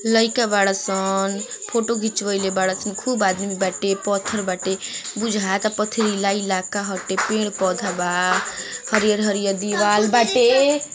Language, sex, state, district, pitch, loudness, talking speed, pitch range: Bhojpuri, female, Uttar Pradesh, Ghazipur, 205 Hz, -20 LUFS, 130 wpm, 195-220 Hz